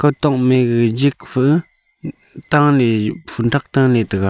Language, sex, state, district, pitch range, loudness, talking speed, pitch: Wancho, male, Arunachal Pradesh, Longding, 120-145 Hz, -16 LUFS, 125 wpm, 130 Hz